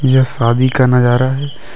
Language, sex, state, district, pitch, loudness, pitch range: Hindi, male, Jharkhand, Deoghar, 130 Hz, -13 LUFS, 120-130 Hz